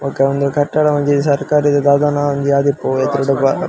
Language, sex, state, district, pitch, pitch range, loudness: Tulu, male, Karnataka, Dakshina Kannada, 140 Hz, 140-145 Hz, -15 LUFS